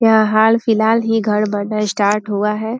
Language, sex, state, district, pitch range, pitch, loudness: Hindi, female, Bihar, Muzaffarpur, 210-225 Hz, 215 Hz, -15 LUFS